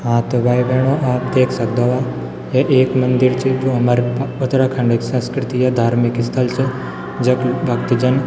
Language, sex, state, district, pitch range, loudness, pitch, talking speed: Garhwali, male, Uttarakhand, Tehri Garhwal, 120-130 Hz, -17 LUFS, 125 Hz, 165 wpm